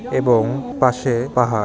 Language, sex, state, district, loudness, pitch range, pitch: Bengali, male, West Bengal, Jhargram, -18 LUFS, 120-130 Hz, 125 Hz